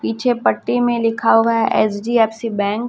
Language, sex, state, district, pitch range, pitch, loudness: Hindi, female, Chhattisgarh, Raipur, 215-240 Hz, 230 Hz, -17 LUFS